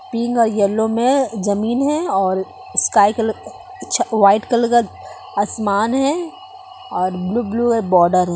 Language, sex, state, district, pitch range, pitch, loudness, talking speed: Hindi, female, West Bengal, Purulia, 200-270 Hz, 230 Hz, -17 LUFS, 165 wpm